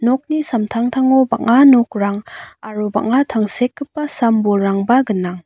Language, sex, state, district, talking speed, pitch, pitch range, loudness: Garo, female, Meghalaya, West Garo Hills, 100 wpm, 235 Hz, 210-265 Hz, -15 LUFS